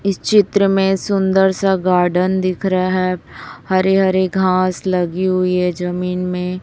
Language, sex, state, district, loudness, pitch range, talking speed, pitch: Hindi, female, Chhattisgarh, Raipur, -16 LUFS, 180-190 Hz, 155 wpm, 185 Hz